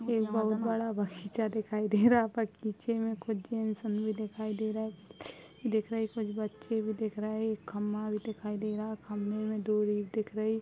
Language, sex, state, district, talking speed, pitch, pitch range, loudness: Hindi, female, Uttar Pradesh, Gorakhpur, 200 wpm, 215 Hz, 210-220 Hz, -33 LUFS